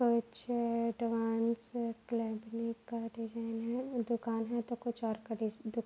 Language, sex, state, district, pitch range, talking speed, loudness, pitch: Hindi, female, Maharashtra, Aurangabad, 225-235 Hz, 155 wpm, -37 LUFS, 230 Hz